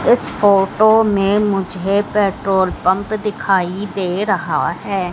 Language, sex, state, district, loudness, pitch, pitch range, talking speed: Hindi, female, Madhya Pradesh, Katni, -16 LUFS, 195 Hz, 185-205 Hz, 115 wpm